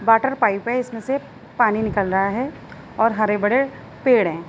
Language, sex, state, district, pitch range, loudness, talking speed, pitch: Hindi, female, Uttar Pradesh, Budaun, 205-250 Hz, -20 LUFS, 175 wpm, 225 Hz